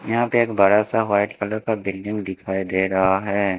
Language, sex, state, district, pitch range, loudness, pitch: Hindi, male, Haryana, Jhajjar, 95-110 Hz, -21 LUFS, 100 Hz